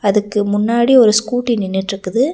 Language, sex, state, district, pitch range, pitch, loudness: Tamil, female, Tamil Nadu, Nilgiris, 200-240 Hz, 210 Hz, -15 LUFS